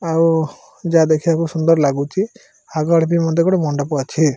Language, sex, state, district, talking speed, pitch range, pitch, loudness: Odia, male, Odisha, Malkangiri, 150 wpm, 155-165 Hz, 165 Hz, -17 LUFS